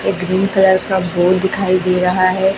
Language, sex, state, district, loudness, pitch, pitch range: Hindi, female, Chhattisgarh, Raipur, -15 LUFS, 185 Hz, 185-190 Hz